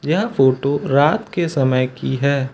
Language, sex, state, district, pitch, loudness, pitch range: Hindi, male, Uttar Pradesh, Lucknow, 140 Hz, -18 LUFS, 135-160 Hz